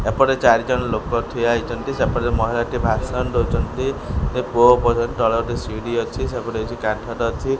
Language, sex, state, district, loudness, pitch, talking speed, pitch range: Odia, male, Odisha, Khordha, -20 LUFS, 120 Hz, 160 wpm, 115-125 Hz